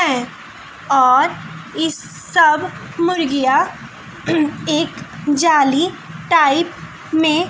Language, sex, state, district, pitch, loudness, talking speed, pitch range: Hindi, female, Bihar, West Champaran, 315 Hz, -16 LUFS, 65 wpm, 285-335 Hz